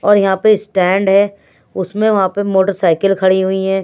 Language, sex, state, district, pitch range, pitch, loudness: Hindi, female, Bihar, West Champaran, 190-200 Hz, 195 Hz, -14 LUFS